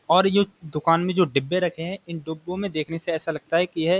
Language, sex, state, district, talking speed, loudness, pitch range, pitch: Hindi, male, Uttar Pradesh, Budaun, 285 wpm, -24 LUFS, 160-180 Hz, 170 Hz